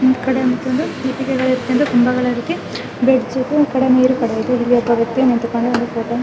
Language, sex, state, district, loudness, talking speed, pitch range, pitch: Kannada, female, Karnataka, Bellary, -17 LUFS, 135 wpm, 240-260 Hz, 255 Hz